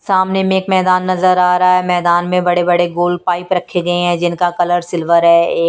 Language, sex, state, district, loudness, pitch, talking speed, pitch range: Hindi, female, Punjab, Kapurthala, -13 LUFS, 175 Hz, 220 wpm, 175-185 Hz